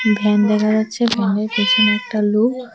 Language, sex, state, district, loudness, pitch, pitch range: Bengali, female, Tripura, West Tripura, -16 LUFS, 215 Hz, 210-225 Hz